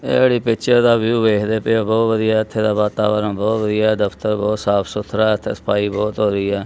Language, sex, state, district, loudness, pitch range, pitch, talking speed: Punjabi, male, Punjab, Kapurthala, -17 LUFS, 105-110 Hz, 110 Hz, 205 wpm